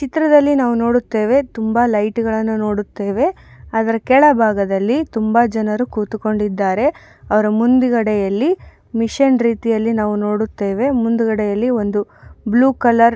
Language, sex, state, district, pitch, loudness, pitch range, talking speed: Kannada, female, Karnataka, Mysore, 225 Hz, -16 LUFS, 210-250 Hz, 115 wpm